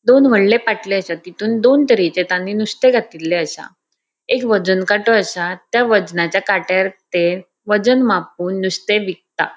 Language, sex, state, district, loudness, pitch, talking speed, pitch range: Konkani, female, Goa, North and South Goa, -16 LUFS, 200 Hz, 145 wpm, 180-225 Hz